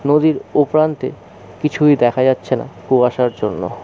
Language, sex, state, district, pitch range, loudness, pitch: Bengali, male, West Bengal, Jalpaiguri, 125-150 Hz, -16 LUFS, 130 Hz